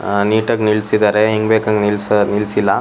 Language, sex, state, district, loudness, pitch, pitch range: Kannada, male, Karnataka, Shimoga, -15 LUFS, 105 Hz, 105-110 Hz